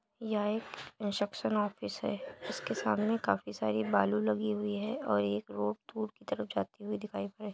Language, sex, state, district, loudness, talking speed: Hindi, male, Uttar Pradesh, Jalaun, -34 LUFS, 185 wpm